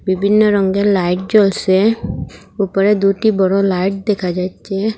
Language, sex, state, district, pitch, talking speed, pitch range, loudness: Bengali, female, Assam, Hailakandi, 195 Hz, 120 wpm, 190-205 Hz, -15 LUFS